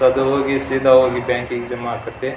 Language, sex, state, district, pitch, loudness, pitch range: Kannada, male, Karnataka, Belgaum, 130 Hz, -18 LUFS, 125-135 Hz